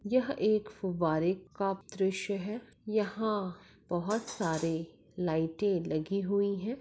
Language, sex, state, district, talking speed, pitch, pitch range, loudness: Hindi, female, Maharashtra, Nagpur, 115 wpm, 195 Hz, 175-215 Hz, -33 LUFS